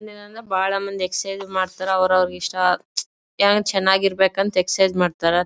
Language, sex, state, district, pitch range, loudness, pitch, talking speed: Kannada, female, Karnataka, Bellary, 185-195 Hz, -20 LUFS, 190 Hz, 130 wpm